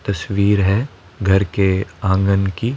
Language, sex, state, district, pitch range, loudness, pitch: Hindi, male, Rajasthan, Jaipur, 95-100 Hz, -18 LUFS, 100 Hz